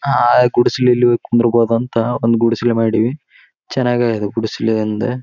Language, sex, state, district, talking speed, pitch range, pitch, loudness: Kannada, male, Karnataka, Raichur, 140 wpm, 115-120 Hz, 120 Hz, -15 LUFS